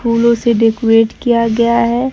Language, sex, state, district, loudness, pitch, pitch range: Hindi, female, Bihar, Kaimur, -12 LUFS, 235 Hz, 225-235 Hz